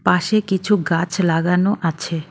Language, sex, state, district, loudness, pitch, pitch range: Bengali, female, West Bengal, Cooch Behar, -19 LUFS, 180 Hz, 165-195 Hz